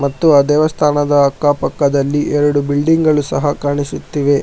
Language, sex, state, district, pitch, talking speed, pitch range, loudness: Kannada, male, Karnataka, Bangalore, 145 Hz, 135 wpm, 140-150 Hz, -14 LUFS